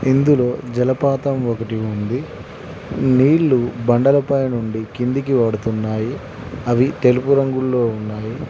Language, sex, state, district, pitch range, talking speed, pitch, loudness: Telugu, male, Telangana, Mahabubabad, 115-135 Hz, 100 wpm, 125 Hz, -18 LUFS